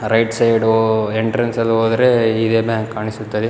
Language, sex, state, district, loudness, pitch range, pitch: Kannada, male, Karnataka, Bellary, -16 LUFS, 110-115 Hz, 115 Hz